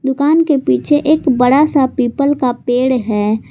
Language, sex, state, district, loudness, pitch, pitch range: Hindi, female, Jharkhand, Garhwa, -13 LUFS, 265 Hz, 245-290 Hz